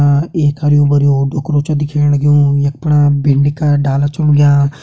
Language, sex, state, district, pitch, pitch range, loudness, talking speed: Hindi, male, Uttarakhand, Uttarkashi, 145 Hz, 140-145 Hz, -12 LUFS, 200 wpm